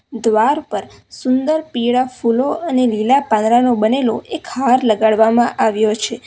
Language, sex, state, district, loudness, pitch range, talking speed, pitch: Gujarati, female, Gujarat, Valsad, -16 LUFS, 220-255 Hz, 145 wpm, 235 Hz